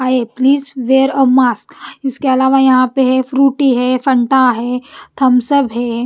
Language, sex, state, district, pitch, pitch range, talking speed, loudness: Hindi, female, Punjab, Kapurthala, 260 Hz, 250-270 Hz, 160 wpm, -13 LUFS